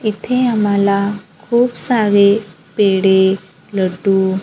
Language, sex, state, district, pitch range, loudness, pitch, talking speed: Marathi, female, Maharashtra, Gondia, 190-215 Hz, -15 LUFS, 200 Hz, 80 wpm